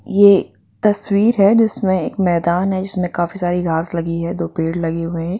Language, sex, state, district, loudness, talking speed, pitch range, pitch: Hindi, female, Jharkhand, Jamtara, -16 LUFS, 180 wpm, 170-200 Hz, 180 Hz